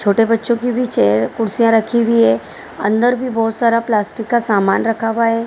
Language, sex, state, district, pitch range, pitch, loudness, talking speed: Hindi, female, Bihar, Saharsa, 215-235 Hz, 225 Hz, -15 LUFS, 210 wpm